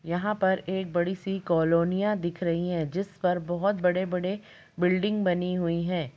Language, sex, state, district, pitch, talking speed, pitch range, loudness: Hindi, female, Uttar Pradesh, Jalaun, 180 Hz, 165 wpm, 175-190 Hz, -27 LUFS